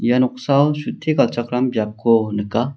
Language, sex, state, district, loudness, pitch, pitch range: Garo, male, Meghalaya, South Garo Hills, -19 LUFS, 125 Hz, 115-135 Hz